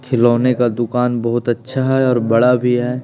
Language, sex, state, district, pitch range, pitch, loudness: Hindi, male, Bihar, Patna, 120-125 Hz, 125 Hz, -16 LUFS